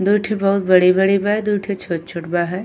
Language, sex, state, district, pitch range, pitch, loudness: Bhojpuri, female, Uttar Pradesh, Gorakhpur, 180-205 Hz, 195 Hz, -17 LUFS